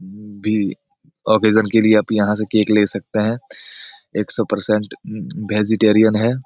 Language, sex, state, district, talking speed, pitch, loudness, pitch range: Hindi, male, Jharkhand, Jamtara, 150 wpm, 110 Hz, -17 LUFS, 105-110 Hz